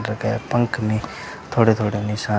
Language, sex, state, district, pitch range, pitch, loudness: Hindi, male, Rajasthan, Bikaner, 105-115 Hz, 110 Hz, -21 LUFS